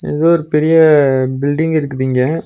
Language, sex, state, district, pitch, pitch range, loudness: Tamil, male, Tamil Nadu, Nilgiris, 150 Hz, 135-160 Hz, -13 LUFS